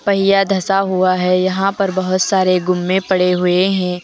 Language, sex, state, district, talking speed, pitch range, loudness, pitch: Hindi, female, Uttar Pradesh, Lucknow, 180 wpm, 180-195 Hz, -15 LUFS, 185 Hz